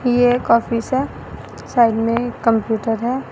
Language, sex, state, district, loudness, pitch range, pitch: Hindi, female, Assam, Sonitpur, -18 LUFS, 230-245 Hz, 235 Hz